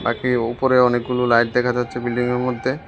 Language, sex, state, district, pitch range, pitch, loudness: Bengali, male, Tripura, West Tripura, 120-125 Hz, 125 Hz, -19 LUFS